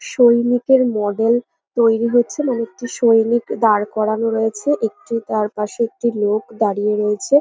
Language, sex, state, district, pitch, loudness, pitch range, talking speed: Bengali, female, West Bengal, North 24 Parganas, 230 Hz, -18 LUFS, 215-240 Hz, 140 wpm